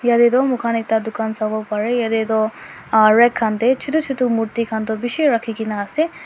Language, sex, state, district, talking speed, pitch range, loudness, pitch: Nagamese, female, Nagaland, Dimapur, 200 wpm, 220-245 Hz, -18 LUFS, 225 Hz